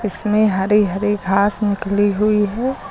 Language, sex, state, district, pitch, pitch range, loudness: Hindi, female, Uttar Pradesh, Lucknow, 205 Hz, 200-210 Hz, -17 LUFS